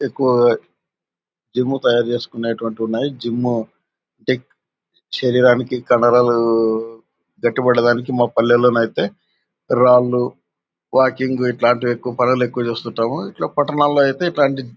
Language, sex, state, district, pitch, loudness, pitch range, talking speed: Telugu, male, Andhra Pradesh, Anantapur, 120 Hz, -17 LUFS, 115-125 Hz, 90 wpm